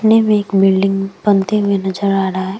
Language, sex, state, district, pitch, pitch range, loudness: Hindi, female, Uttar Pradesh, Jyotiba Phule Nagar, 195 Hz, 195-205 Hz, -15 LUFS